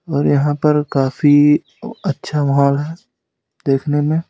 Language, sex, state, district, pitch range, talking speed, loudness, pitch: Hindi, male, Uttar Pradesh, Lalitpur, 140-155 Hz, 125 wpm, -16 LUFS, 145 Hz